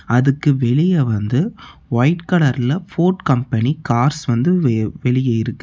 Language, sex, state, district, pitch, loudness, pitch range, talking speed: Tamil, male, Tamil Nadu, Namakkal, 135 Hz, -17 LUFS, 120-160 Hz, 115 wpm